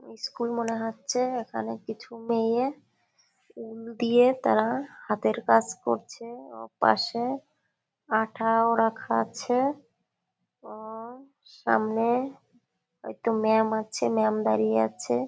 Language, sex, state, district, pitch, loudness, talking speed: Bengali, female, West Bengal, Kolkata, 225 Hz, -26 LUFS, 100 wpm